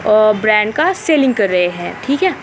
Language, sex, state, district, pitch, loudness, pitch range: Hindi, female, Uttarakhand, Uttarkashi, 215 Hz, -14 LUFS, 210-305 Hz